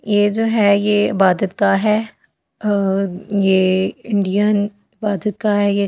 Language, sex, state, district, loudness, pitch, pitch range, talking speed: Hindi, female, Delhi, New Delhi, -17 LUFS, 205 Hz, 195-210 Hz, 145 wpm